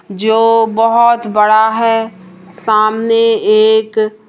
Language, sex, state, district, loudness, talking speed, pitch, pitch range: Hindi, female, Madhya Pradesh, Umaria, -11 LUFS, 85 wpm, 220 Hz, 215-225 Hz